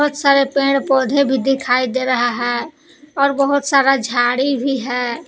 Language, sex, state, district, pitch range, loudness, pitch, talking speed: Hindi, female, Jharkhand, Palamu, 250-280 Hz, -16 LUFS, 270 Hz, 160 wpm